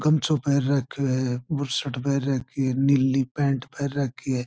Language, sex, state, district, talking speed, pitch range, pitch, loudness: Marwari, male, Rajasthan, Churu, 175 wpm, 130-140 Hz, 135 Hz, -25 LUFS